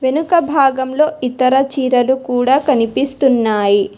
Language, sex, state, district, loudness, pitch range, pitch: Telugu, female, Telangana, Hyderabad, -14 LUFS, 250-275 Hz, 260 Hz